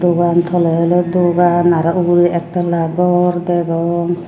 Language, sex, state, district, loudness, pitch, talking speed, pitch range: Chakma, female, Tripura, Dhalai, -14 LUFS, 175 Hz, 125 wpm, 170-175 Hz